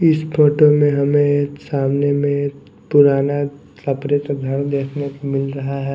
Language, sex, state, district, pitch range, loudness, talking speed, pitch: Hindi, male, Chhattisgarh, Raipur, 140-145 Hz, -17 LUFS, 160 wpm, 140 Hz